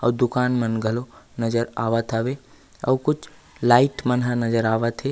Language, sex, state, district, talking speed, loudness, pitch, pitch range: Chhattisgarhi, male, Chhattisgarh, Raigarh, 175 wpm, -22 LUFS, 120 Hz, 115-125 Hz